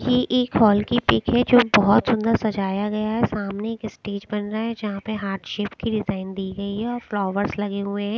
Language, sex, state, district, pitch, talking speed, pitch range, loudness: Hindi, female, Chandigarh, Chandigarh, 210 Hz, 240 wpm, 200-230 Hz, -22 LUFS